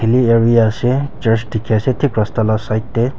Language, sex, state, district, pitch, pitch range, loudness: Nagamese, male, Nagaland, Kohima, 115 Hz, 110-125 Hz, -15 LUFS